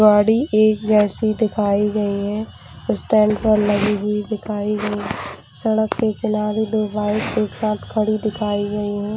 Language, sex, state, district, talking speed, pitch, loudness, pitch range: Hindi, female, Jharkhand, Jamtara, 135 wpm, 210 Hz, -19 LUFS, 210-215 Hz